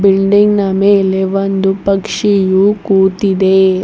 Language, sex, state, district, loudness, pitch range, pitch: Kannada, female, Karnataka, Bidar, -12 LUFS, 190-200 Hz, 195 Hz